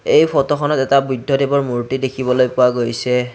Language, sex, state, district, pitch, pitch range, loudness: Assamese, male, Assam, Kamrup Metropolitan, 130 Hz, 125-140 Hz, -16 LUFS